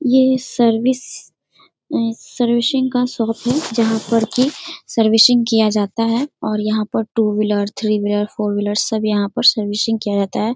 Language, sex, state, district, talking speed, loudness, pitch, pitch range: Hindi, female, Bihar, Darbhanga, 165 wpm, -17 LUFS, 225 Hz, 210-245 Hz